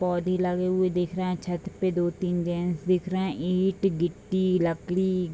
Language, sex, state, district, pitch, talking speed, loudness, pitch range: Hindi, female, Bihar, Bhagalpur, 180 Hz, 190 wpm, -27 LUFS, 175-185 Hz